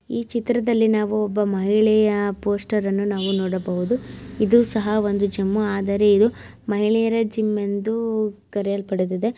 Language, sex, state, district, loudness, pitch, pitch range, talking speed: Kannada, female, Karnataka, Belgaum, -21 LUFS, 210 Hz, 200-220 Hz, 120 wpm